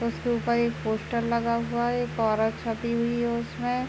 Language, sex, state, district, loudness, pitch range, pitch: Hindi, male, Bihar, Purnia, -27 LUFS, 230-235 Hz, 235 Hz